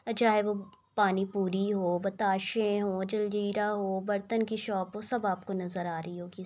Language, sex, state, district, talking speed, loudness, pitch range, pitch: Hindi, female, Uttar Pradesh, Budaun, 165 wpm, -31 LUFS, 190-210 Hz, 200 Hz